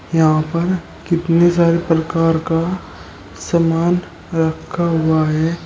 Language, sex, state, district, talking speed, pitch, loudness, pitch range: Hindi, male, Uttar Pradesh, Shamli, 105 wpm, 165 Hz, -17 LUFS, 160-170 Hz